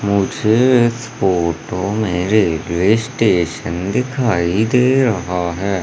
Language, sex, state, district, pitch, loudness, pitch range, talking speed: Hindi, male, Madhya Pradesh, Umaria, 100 Hz, -16 LUFS, 90-120 Hz, 105 wpm